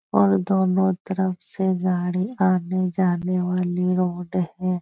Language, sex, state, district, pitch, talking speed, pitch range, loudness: Hindi, female, Bihar, Supaul, 185 Hz, 110 wpm, 180-185 Hz, -22 LUFS